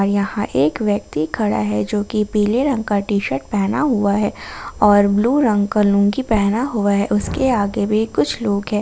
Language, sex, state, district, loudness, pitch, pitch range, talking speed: Hindi, female, Jharkhand, Ranchi, -18 LUFS, 205 Hz, 200-220 Hz, 190 wpm